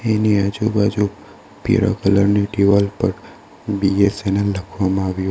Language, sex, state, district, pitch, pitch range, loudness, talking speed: Gujarati, male, Gujarat, Valsad, 100 Hz, 95-105 Hz, -18 LUFS, 115 wpm